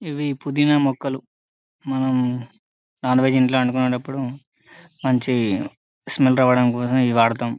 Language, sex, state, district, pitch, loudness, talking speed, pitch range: Telugu, male, Telangana, Karimnagar, 130 Hz, -20 LUFS, 110 wpm, 125-135 Hz